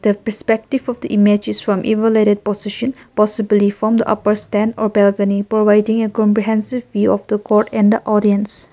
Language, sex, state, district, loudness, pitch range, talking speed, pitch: English, female, Nagaland, Kohima, -16 LUFS, 205-220 Hz, 180 wpm, 210 Hz